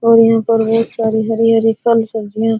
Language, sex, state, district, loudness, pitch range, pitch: Hindi, female, Bihar, Araria, -14 LUFS, 225-230 Hz, 225 Hz